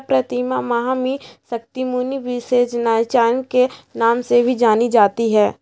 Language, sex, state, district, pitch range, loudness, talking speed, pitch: Hindi, female, Bihar, Gaya, 225-250 Hz, -18 LUFS, 105 wpm, 240 Hz